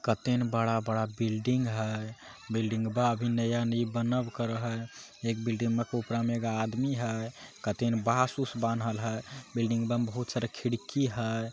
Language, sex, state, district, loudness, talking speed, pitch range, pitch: Magahi, male, Bihar, Jamui, -31 LUFS, 165 wpm, 115-120 Hz, 115 Hz